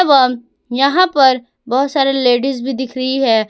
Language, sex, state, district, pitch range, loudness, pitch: Hindi, female, Jharkhand, Palamu, 250-270 Hz, -15 LUFS, 260 Hz